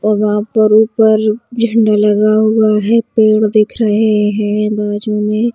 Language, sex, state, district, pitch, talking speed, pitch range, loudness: Hindi, female, Chhattisgarh, Bastar, 215 Hz, 150 wpm, 210-220 Hz, -12 LUFS